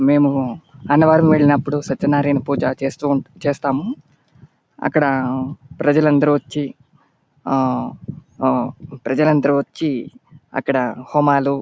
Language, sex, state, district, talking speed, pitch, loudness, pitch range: Telugu, male, Andhra Pradesh, Anantapur, 85 wpm, 140 Hz, -18 LUFS, 135-150 Hz